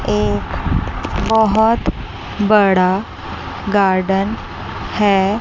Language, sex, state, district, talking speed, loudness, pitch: Hindi, female, Chandigarh, Chandigarh, 55 wpm, -16 LUFS, 185 Hz